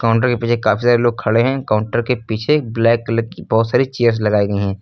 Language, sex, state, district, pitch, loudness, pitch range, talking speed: Hindi, male, Uttar Pradesh, Lucknow, 115 Hz, -16 LUFS, 110-120 Hz, 250 wpm